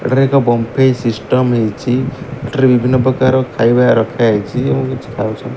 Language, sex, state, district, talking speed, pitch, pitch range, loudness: Odia, male, Odisha, Malkangiri, 150 wpm, 125 Hz, 115-130 Hz, -14 LUFS